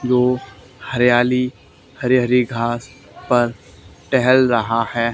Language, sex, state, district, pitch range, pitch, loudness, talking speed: Hindi, male, Haryana, Charkhi Dadri, 115-125 Hz, 120 Hz, -18 LUFS, 105 wpm